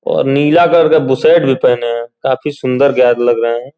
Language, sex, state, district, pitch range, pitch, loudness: Hindi, male, Uttar Pradesh, Gorakhpur, 120-160 Hz, 135 Hz, -12 LUFS